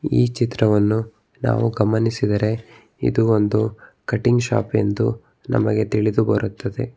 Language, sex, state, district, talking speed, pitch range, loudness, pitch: Kannada, male, Karnataka, Bangalore, 120 wpm, 105-115 Hz, -20 LUFS, 110 Hz